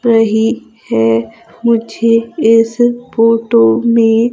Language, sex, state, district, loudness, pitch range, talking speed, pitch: Hindi, female, Madhya Pradesh, Umaria, -12 LUFS, 225-235 Hz, 85 wpm, 230 Hz